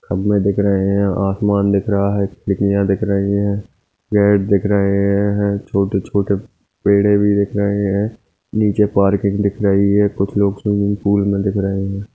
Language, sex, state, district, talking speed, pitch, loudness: Hindi, male, Goa, North and South Goa, 170 wpm, 100 Hz, -17 LUFS